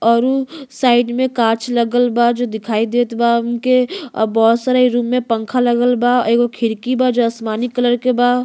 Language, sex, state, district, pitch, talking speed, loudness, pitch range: Bhojpuri, female, Uttar Pradesh, Gorakhpur, 245 Hz, 200 wpm, -16 LUFS, 230-250 Hz